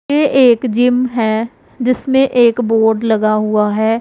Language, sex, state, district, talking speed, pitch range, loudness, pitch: Hindi, female, Punjab, Pathankot, 150 wpm, 220-250 Hz, -13 LUFS, 235 Hz